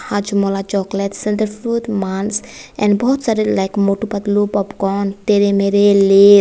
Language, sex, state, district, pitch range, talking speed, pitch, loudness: Hindi, female, Tripura, West Tripura, 200-210 Hz, 120 wpm, 205 Hz, -16 LUFS